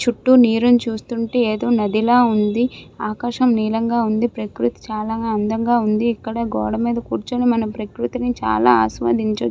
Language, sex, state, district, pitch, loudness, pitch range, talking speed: Telugu, female, Andhra Pradesh, Visakhapatnam, 225 Hz, -18 LUFS, 215-240 Hz, 135 wpm